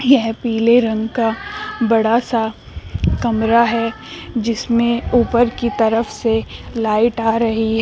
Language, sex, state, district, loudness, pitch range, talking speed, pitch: Hindi, female, Uttar Pradesh, Shamli, -17 LUFS, 225-235 Hz, 130 wpm, 230 Hz